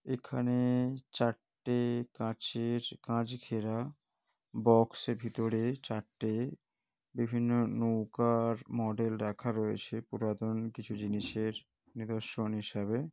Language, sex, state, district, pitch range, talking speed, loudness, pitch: Bengali, male, West Bengal, Kolkata, 110-120 Hz, 80 wpm, -34 LUFS, 115 Hz